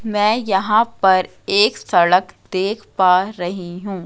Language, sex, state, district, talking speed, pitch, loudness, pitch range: Hindi, female, Madhya Pradesh, Katni, 135 wpm, 195 Hz, -17 LUFS, 180-210 Hz